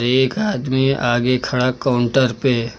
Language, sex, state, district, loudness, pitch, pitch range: Hindi, male, Uttar Pradesh, Lucknow, -18 LUFS, 125 Hz, 120-130 Hz